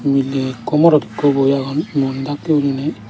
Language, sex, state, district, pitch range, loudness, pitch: Chakma, male, Tripura, Dhalai, 135-150 Hz, -17 LUFS, 140 Hz